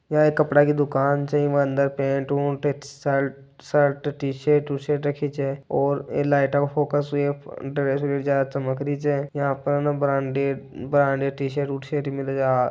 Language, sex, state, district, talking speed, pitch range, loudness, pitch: Marwari, male, Rajasthan, Nagaur, 135 wpm, 135-145 Hz, -23 LUFS, 140 Hz